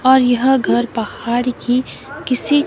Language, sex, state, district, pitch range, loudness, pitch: Hindi, female, Himachal Pradesh, Shimla, 240-265 Hz, -17 LUFS, 255 Hz